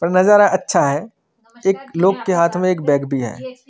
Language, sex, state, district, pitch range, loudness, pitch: Hindi, male, Chandigarh, Chandigarh, 170-205 Hz, -17 LUFS, 185 Hz